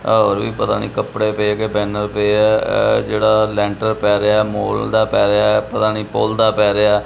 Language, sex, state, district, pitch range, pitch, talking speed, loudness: Punjabi, male, Punjab, Kapurthala, 105-110 Hz, 105 Hz, 230 wpm, -16 LUFS